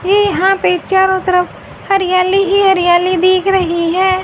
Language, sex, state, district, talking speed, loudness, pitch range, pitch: Hindi, female, Haryana, Rohtak, 155 wpm, -12 LUFS, 365-390 Hz, 375 Hz